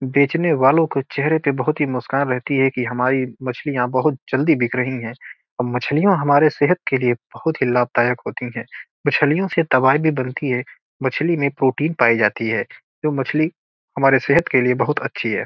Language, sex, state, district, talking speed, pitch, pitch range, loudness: Hindi, male, Bihar, Gopalganj, 195 wpm, 135 Hz, 125-150 Hz, -19 LUFS